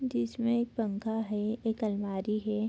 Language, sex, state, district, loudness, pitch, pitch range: Hindi, female, Bihar, Darbhanga, -32 LUFS, 215 Hz, 200-225 Hz